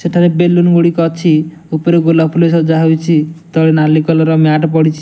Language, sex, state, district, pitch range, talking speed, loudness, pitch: Odia, male, Odisha, Nuapada, 160-170 Hz, 155 wpm, -11 LUFS, 160 Hz